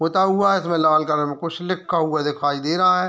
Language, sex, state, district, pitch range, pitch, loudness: Hindi, male, Bihar, Muzaffarpur, 155-185 Hz, 165 Hz, -20 LUFS